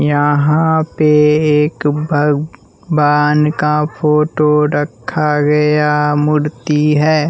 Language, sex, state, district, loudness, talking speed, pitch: Hindi, male, Bihar, West Champaran, -13 LUFS, 90 wpm, 150 Hz